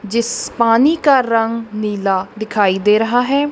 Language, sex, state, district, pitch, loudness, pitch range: Hindi, female, Punjab, Kapurthala, 225 Hz, -15 LUFS, 210-245 Hz